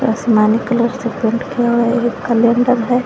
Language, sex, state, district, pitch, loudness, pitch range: Hindi, female, Jharkhand, Garhwa, 235 Hz, -15 LUFS, 230-245 Hz